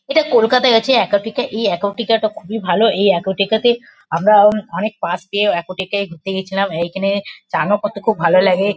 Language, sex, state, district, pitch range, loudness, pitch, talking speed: Bengali, female, West Bengal, Kolkata, 195-225 Hz, -16 LUFS, 205 Hz, 235 wpm